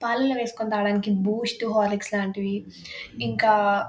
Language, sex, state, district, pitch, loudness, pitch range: Telugu, female, Telangana, Nalgonda, 210 Hz, -24 LUFS, 200-225 Hz